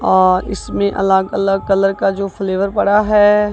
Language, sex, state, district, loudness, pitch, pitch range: Hindi, female, Punjab, Kapurthala, -15 LUFS, 195 Hz, 195-205 Hz